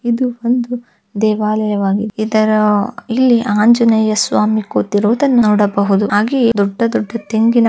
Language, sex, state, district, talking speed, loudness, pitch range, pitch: Kannada, female, Karnataka, Bellary, 100 wpm, -14 LUFS, 210-235 Hz, 215 Hz